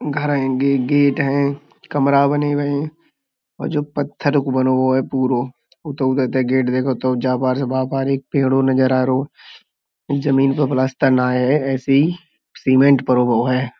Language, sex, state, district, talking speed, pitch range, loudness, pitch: Hindi, male, Uttar Pradesh, Budaun, 120 wpm, 130-145 Hz, -18 LUFS, 135 Hz